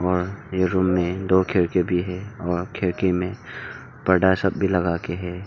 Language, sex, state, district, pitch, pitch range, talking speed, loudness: Hindi, male, Arunachal Pradesh, Longding, 90 Hz, 90-95 Hz, 185 wpm, -22 LUFS